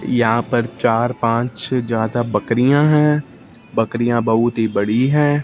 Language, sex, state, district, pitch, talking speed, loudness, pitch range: Hindi, male, Punjab, Fazilka, 120 Hz, 130 wpm, -17 LUFS, 115-130 Hz